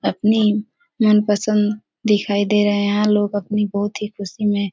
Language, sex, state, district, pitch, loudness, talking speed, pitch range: Hindi, female, Bihar, Jahanabad, 210 Hz, -19 LUFS, 165 wpm, 205-215 Hz